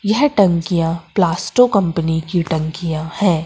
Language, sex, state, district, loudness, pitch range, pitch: Hindi, female, Madhya Pradesh, Umaria, -17 LUFS, 165-200 Hz, 170 Hz